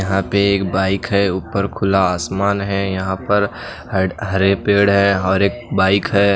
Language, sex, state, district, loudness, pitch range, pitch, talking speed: Hindi, male, Odisha, Nuapada, -17 LUFS, 95-100 Hz, 100 Hz, 180 wpm